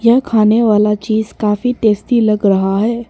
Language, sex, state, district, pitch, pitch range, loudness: Hindi, female, Arunachal Pradesh, Papum Pare, 220 Hz, 210-235 Hz, -13 LUFS